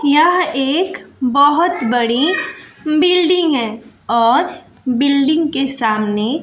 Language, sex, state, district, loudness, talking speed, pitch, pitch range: Hindi, female, Bihar, West Champaran, -15 LUFS, 95 wpm, 280 Hz, 240-330 Hz